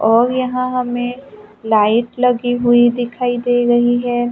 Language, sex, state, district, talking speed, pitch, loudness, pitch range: Hindi, female, Maharashtra, Gondia, 140 wpm, 245 Hz, -15 LUFS, 240-245 Hz